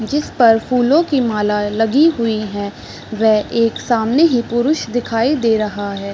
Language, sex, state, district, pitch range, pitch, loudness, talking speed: Hindi, female, Chhattisgarh, Raigarh, 215-250 Hz, 230 Hz, -16 LUFS, 165 wpm